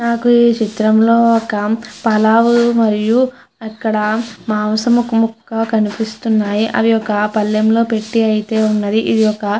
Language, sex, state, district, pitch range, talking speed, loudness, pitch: Telugu, female, Andhra Pradesh, Chittoor, 215-230 Hz, 120 wpm, -14 LUFS, 220 Hz